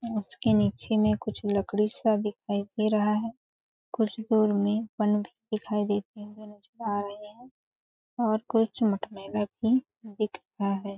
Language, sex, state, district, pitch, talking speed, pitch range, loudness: Hindi, female, Chhattisgarh, Balrampur, 215 Hz, 135 wpm, 205-225 Hz, -28 LUFS